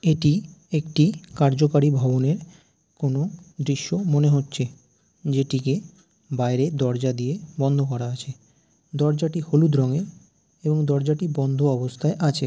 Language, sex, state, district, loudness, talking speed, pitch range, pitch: Bengali, male, West Bengal, Jalpaiguri, -23 LUFS, 120 wpm, 135-165 Hz, 145 Hz